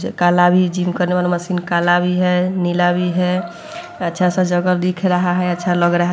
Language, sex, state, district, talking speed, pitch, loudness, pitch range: Hindi, female, Bihar, Sitamarhi, 215 wpm, 180 Hz, -17 LUFS, 175-180 Hz